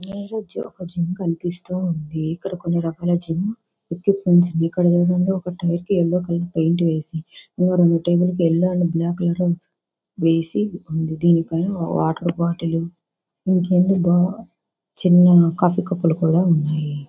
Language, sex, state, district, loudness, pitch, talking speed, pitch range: Telugu, female, Andhra Pradesh, Visakhapatnam, -20 LUFS, 175 Hz, 140 wpm, 165-180 Hz